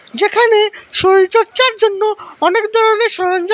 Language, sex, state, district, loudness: Bengali, male, Assam, Hailakandi, -12 LUFS